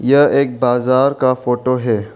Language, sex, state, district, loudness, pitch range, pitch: Hindi, male, Arunachal Pradesh, Longding, -15 LUFS, 125-135 Hz, 130 Hz